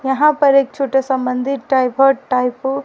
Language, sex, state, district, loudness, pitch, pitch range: Hindi, female, Haryana, Rohtak, -16 LUFS, 270 Hz, 260-275 Hz